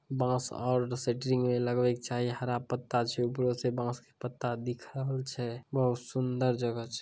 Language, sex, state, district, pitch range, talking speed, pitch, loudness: Maithili, male, Bihar, Samastipur, 120-125 Hz, 190 wpm, 125 Hz, -32 LUFS